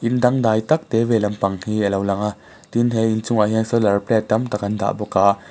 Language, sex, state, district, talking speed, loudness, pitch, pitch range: Mizo, male, Mizoram, Aizawl, 250 wpm, -19 LUFS, 110 Hz, 100-115 Hz